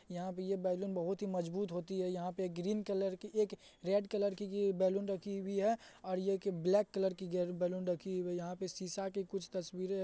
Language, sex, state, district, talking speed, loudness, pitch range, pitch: Hindi, male, Bihar, Saharsa, 240 wpm, -38 LUFS, 180-200 Hz, 190 Hz